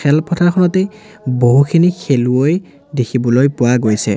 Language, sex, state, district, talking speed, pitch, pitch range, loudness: Assamese, male, Assam, Sonitpur, 85 wpm, 140 Hz, 125-175 Hz, -14 LUFS